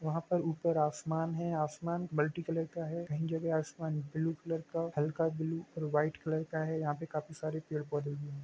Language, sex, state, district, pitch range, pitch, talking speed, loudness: Hindi, male, Jharkhand, Jamtara, 150-165 Hz, 160 Hz, 205 wpm, -36 LUFS